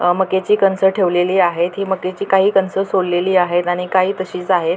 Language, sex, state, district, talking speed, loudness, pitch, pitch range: Marathi, female, Maharashtra, Pune, 190 wpm, -16 LUFS, 185 Hz, 175-190 Hz